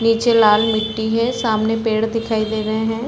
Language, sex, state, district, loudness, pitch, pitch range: Hindi, female, Chhattisgarh, Balrampur, -17 LUFS, 225 Hz, 220-230 Hz